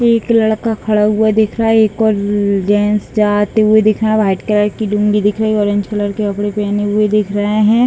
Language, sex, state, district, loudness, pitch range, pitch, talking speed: Hindi, female, Bihar, Sitamarhi, -14 LUFS, 205-220 Hz, 210 Hz, 220 wpm